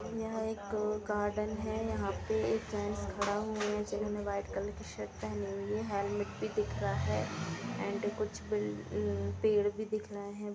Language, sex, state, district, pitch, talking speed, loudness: Hindi, female, Uttar Pradesh, Jalaun, 205 Hz, 195 wpm, -36 LUFS